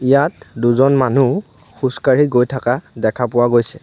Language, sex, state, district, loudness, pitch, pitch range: Assamese, male, Assam, Sonitpur, -16 LUFS, 125 Hz, 120-135 Hz